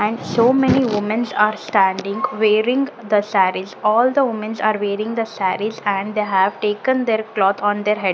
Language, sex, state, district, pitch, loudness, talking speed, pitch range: English, female, Maharashtra, Gondia, 210 Hz, -18 LUFS, 185 wpm, 200-225 Hz